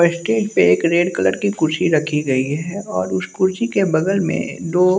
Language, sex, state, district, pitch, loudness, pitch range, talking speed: Hindi, male, Bihar, West Champaran, 170 Hz, -18 LUFS, 155-195 Hz, 215 wpm